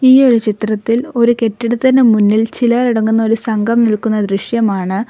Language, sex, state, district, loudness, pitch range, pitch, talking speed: Malayalam, female, Kerala, Kollam, -13 LUFS, 215-240 Hz, 225 Hz, 140 wpm